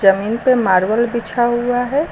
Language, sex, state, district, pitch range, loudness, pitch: Hindi, female, Uttar Pradesh, Lucknow, 215-245 Hz, -16 LUFS, 235 Hz